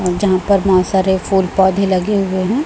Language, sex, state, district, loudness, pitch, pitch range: Hindi, female, Chhattisgarh, Raipur, -15 LUFS, 190 Hz, 185-195 Hz